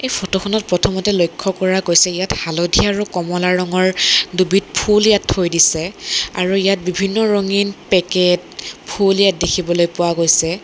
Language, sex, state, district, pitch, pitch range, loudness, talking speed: Assamese, female, Assam, Kamrup Metropolitan, 185 Hz, 175-195 Hz, -15 LUFS, 145 wpm